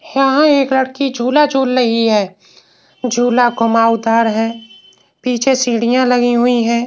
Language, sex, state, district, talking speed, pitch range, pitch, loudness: Hindi, male, Uttar Pradesh, Varanasi, 150 wpm, 230-265 Hz, 245 Hz, -14 LUFS